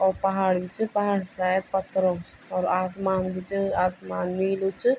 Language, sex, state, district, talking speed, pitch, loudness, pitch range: Garhwali, female, Uttarakhand, Tehri Garhwal, 190 wpm, 190 Hz, -26 LUFS, 185-195 Hz